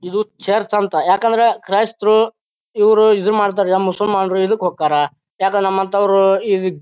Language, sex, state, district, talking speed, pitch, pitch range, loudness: Kannada, male, Karnataka, Bijapur, 115 wpm, 200 Hz, 190-215 Hz, -16 LUFS